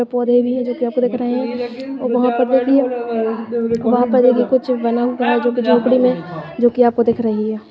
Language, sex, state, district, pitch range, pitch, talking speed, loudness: Hindi, female, Chhattisgarh, Jashpur, 235-250 Hz, 245 Hz, 220 wpm, -16 LUFS